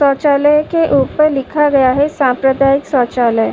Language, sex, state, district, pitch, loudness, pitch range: Hindi, female, Uttar Pradesh, Muzaffarnagar, 275 Hz, -13 LUFS, 265-295 Hz